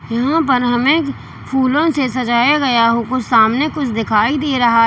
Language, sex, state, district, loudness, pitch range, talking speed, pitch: Hindi, female, Uttar Pradesh, Lalitpur, -15 LUFS, 235-290 Hz, 160 wpm, 255 Hz